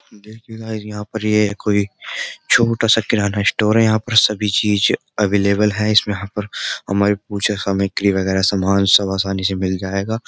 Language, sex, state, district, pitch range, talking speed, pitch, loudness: Hindi, male, Uttar Pradesh, Jyotiba Phule Nagar, 100-110 Hz, 170 wpm, 105 Hz, -17 LUFS